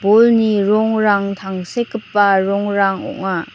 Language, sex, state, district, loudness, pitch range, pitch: Garo, female, Meghalaya, North Garo Hills, -16 LUFS, 195-220 Hz, 205 Hz